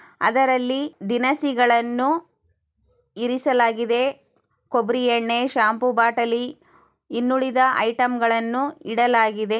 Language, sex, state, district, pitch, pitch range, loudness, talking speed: Kannada, female, Karnataka, Chamarajanagar, 245 Hz, 235-260 Hz, -21 LUFS, 60 wpm